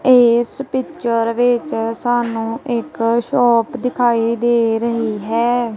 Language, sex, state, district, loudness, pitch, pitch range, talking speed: Punjabi, female, Punjab, Kapurthala, -17 LUFS, 235 Hz, 230-245 Hz, 105 wpm